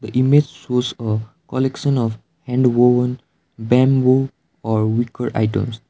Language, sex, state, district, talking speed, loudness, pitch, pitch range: English, male, Sikkim, Gangtok, 110 wpm, -18 LUFS, 120 Hz, 110-130 Hz